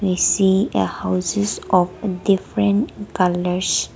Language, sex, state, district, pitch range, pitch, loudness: English, female, Nagaland, Kohima, 180-205 Hz, 190 Hz, -19 LUFS